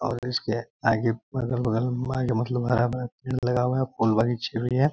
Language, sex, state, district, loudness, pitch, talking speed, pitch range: Hindi, male, Chhattisgarh, Korba, -26 LUFS, 125 Hz, 195 wpm, 115-125 Hz